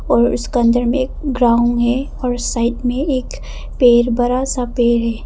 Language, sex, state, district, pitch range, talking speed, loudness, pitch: Hindi, female, Arunachal Pradesh, Papum Pare, 240-255 Hz, 180 wpm, -16 LUFS, 245 Hz